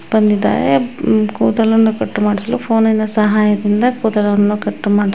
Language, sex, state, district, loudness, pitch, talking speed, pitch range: Kannada, female, Karnataka, Shimoga, -14 LUFS, 215 Hz, 115 wpm, 205-220 Hz